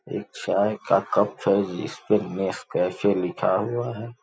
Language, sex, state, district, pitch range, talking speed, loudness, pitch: Hindi, male, Uttar Pradesh, Gorakhpur, 90-115 Hz, 170 wpm, -24 LUFS, 100 Hz